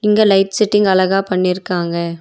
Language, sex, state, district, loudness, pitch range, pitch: Tamil, female, Tamil Nadu, Nilgiris, -15 LUFS, 180-205 Hz, 190 Hz